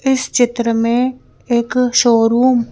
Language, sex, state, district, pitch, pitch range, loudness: Hindi, female, Madhya Pradesh, Bhopal, 240 Hz, 235-250 Hz, -14 LUFS